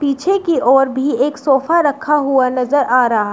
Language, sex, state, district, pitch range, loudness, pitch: Hindi, female, Uttar Pradesh, Shamli, 255-295 Hz, -14 LUFS, 275 Hz